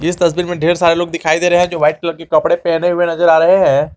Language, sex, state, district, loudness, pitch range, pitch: Hindi, male, Jharkhand, Garhwa, -13 LUFS, 165-175 Hz, 170 Hz